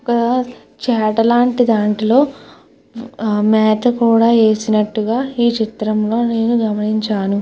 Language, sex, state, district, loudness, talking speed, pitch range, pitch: Telugu, female, Andhra Pradesh, Krishna, -15 LUFS, 90 wpm, 215-240 Hz, 225 Hz